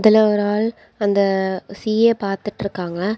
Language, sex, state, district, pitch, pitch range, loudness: Tamil, female, Tamil Nadu, Kanyakumari, 205 Hz, 195-215 Hz, -19 LUFS